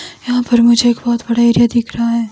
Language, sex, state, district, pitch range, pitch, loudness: Hindi, female, Himachal Pradesh, Shimla, 235-240 Hz, 235 Hz, -13 LUFS